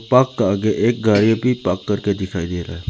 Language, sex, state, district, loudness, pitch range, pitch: Hindi, male, Arunachal Pradesh, Lower Dibang Valley, -18 LUFS, 95-115 Hz, 105 Hz